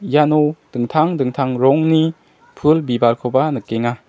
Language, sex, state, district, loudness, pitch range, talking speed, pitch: Garo, male, Meghalaya, West Garo Hills, -17 LUFS, 125-155 Hz, 105 wpm, 135 Hz